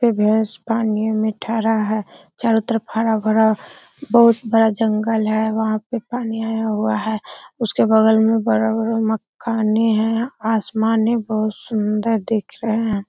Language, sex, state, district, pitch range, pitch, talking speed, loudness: Hindi, female, Uttar Pradesh, Hamirpur, 215-225 Hz, 220 Hz, 145 wpm, -19 LUFS